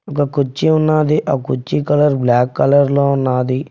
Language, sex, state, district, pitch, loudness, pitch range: Telugu, male, Telangana, Mahabubabad, 140 Hz, -15 LUFS, 125-150 Hz